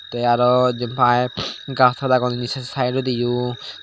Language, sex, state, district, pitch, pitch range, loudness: Chakma, male, Tripura, Dhalai, 125 Hz, 120-125 Hz, -19 LUFS